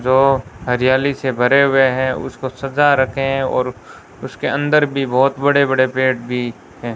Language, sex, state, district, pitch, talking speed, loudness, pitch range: Hindi, male, Rajasthan, Bikaner, 130 Hz, 170 wpm, -16 LUFS, 125-135 Hz